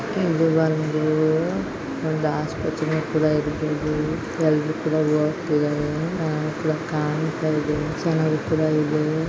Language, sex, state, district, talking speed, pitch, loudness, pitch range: Kannada, male, Karnataka, Raichur, 70 wpm, 155 Hz, -23 LUFS, 150-160 Hz